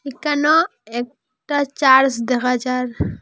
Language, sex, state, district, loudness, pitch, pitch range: Bengali, female, Assam, Hailakandi, -18 LUFS, 265 Hz, 250-290 Hz